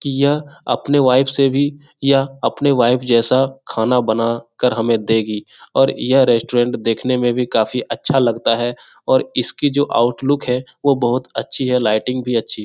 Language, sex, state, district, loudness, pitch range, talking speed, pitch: Hindi, male, Bihar, Jahanabad, -17 LUFS, 115-135 Hz, 175 wpm, 125 Hz